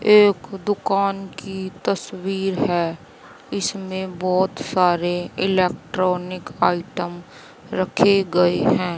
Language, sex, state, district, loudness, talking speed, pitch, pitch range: Hindi, female, Haryana, Rohtak, -21 LUFS, 85 wpm, 185 Hz, 180-195 Hz